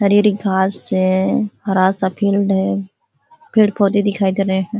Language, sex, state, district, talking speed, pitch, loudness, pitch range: Hindi, female, Uttar Pradesh, Ghazipur, 160 wpm, 195 Hz, -17 LUFS, 190-205 Hz